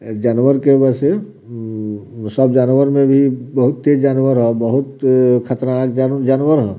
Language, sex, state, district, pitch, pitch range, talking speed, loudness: Bhojpuri, male, Bihar, Muzaffarpur, 130 Hz, 120-135 Hz, 170 wpm, -15 LUFS